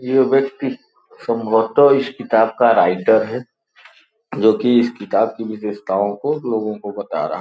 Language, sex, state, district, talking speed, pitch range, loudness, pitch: Hindi, male, Uttar Pradesh, Gorakhpur, 145 wpm, 110-130 Hz, -17 LUFS, 115 Hz